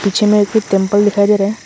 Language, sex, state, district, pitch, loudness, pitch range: Hindi, male, Arunachal Pradesh, Longding, 205 Hz, -13 LUFS, 200-210 Hz